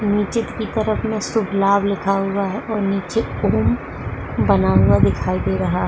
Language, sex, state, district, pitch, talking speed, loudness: Hindi, female, Uttar Pradesh, Budaun, 195 Hz, 175 wpm, -19 LUFS